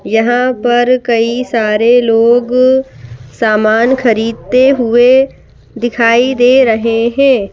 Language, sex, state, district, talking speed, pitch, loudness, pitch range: Hindi, female, Madhya Pradesh, Bhopal, 95 wpm, 240 Hz, -10 LUFS, 225-255 Hz